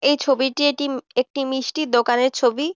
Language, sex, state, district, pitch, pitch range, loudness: Bengali, female, West Bengal, Jhargram, 270 Hz, 255-290 Hz, -20 LUFS